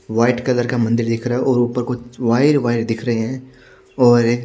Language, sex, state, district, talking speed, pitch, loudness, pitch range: Hindi, male, Chhattisgarh, Raipur, 215 wpm, 120 Hz, -17 LUFS, 115-125 Hz